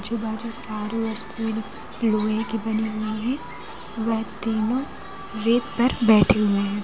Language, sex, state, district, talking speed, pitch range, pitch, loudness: Hindi, female, Madhya Pradesh, Umaria, 140 wpm, 215-230 Hz, 220 Hz, -23 LUFS